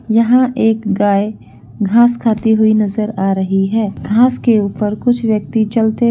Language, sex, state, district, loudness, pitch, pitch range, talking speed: Hindi, female, Bihar, Saharsa, -14 LUFS, 220 Hz, 205-230 Hz, 165 wpm